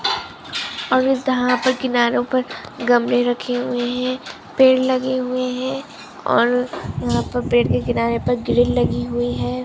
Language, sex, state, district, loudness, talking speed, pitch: Hindi, female, Maharashtra, Chandrapur, -19 LUFS, 155 wpm, 245 Hz